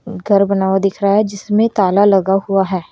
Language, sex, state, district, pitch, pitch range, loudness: Hindi, female, Haryana, Rohtak, 195 Hz, 190-205 Hz, -14 LUFS